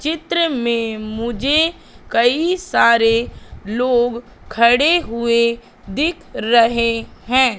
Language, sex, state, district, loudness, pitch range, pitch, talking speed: Hindi, female, Madhya Pradesh, Katni, -17 LUFS, 230-295 Hz, 235 Hz, 85 wpm